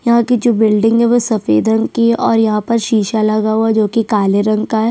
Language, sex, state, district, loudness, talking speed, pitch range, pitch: Hindi, female, Chhattisgarh, Sukma, -13 LUFS, 270 wpm, 215-230 Hz, 220 Hz